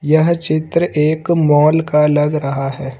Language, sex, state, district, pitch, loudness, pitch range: Hindi, male, Uttar Pradesh, Lucknow, 150 Hz, -15 LUFS, 150-160 Hz